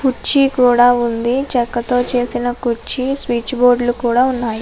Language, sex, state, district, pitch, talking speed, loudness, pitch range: Telugu, female, Andhra Pradesh, Chittoor, 245 Hz, 145 wpm, -15 LUFS, 240-255 Hz